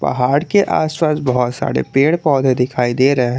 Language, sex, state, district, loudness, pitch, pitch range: Hindi, male, Jharkhand, Garhwa, -16 LUFS, 135 Hz, 125-155 Hz